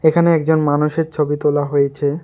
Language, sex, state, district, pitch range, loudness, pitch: Bengali, male, West Bengal, Alipurduar, 145-160 Hz, -17 LUFS, 150 Hz